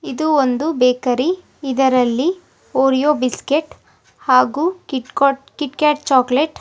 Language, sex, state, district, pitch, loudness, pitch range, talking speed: Kannada, female, Karnataka, Chamarajanagar, 275 Hz, -17 LUFS, 255-305 Hz, 120 wpm